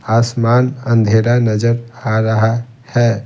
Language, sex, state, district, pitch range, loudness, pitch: Hindi, male, Bihar, Patna, 110-120 Hz, -15 LUFS, 115 Hz